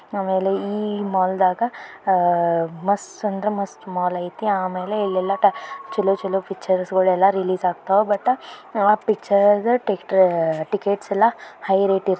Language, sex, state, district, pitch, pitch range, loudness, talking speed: Kannada, female, Karnataka, Belgaum, 195 Hz, 185-205 Hz, -21 LUFS, 135 wpm